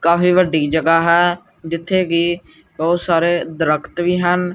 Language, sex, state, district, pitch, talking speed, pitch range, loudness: Punjabi, male, Punjab, Kapurthala, 170 Hz, 145 wpm, 165-175 Hz, -16 LUFS